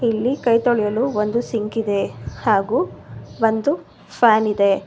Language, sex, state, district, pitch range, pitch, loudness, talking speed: Kannada, female, Karnataka, Bangalore, 210-235 Hz, 225 Hz, -19 LUFS, 125 wpm